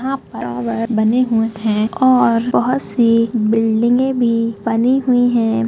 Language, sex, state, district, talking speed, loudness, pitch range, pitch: Hindi, female, Chhattisgarh, Kabirdham, 150 wpm, -16 LUFS, 225-250 Hz, 230 Hz